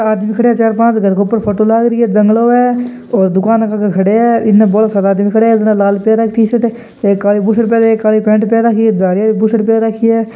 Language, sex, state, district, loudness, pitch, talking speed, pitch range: Hindi, male, Rajasthan, Churu, -11 LUFS, 220 Hz, 210 wpm, 210-230 Hz